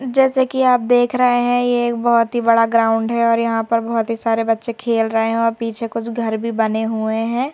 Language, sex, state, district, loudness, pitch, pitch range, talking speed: Hindi, female, Madhya Pradesh, Bhopal, -17 LUFS, 230 Hz, 225-245 Hz, 245 wpm